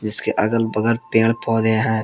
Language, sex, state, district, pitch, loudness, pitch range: Hindi, male, Jharkhand, Palamu, 110 Hz, -17 LUFS, 110-115 Hz